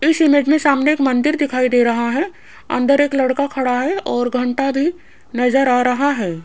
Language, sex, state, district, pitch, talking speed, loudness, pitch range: Hindi, female, Rajasthan, Jaipur, 270 Hz, 205 wpm, -16 LUFS, 250-290 Hz